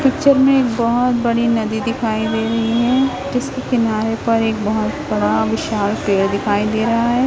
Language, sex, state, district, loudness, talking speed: Hindi, female, Chhattisgarh, Raipur, -17 LUFS, 180 wpm